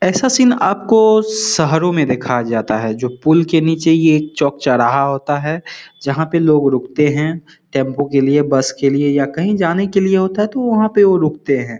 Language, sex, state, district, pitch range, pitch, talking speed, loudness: Hindi, male, Bihar, Samastipur, 140-190 Hz, 155 Hz, 210 wpm, -15 LUFS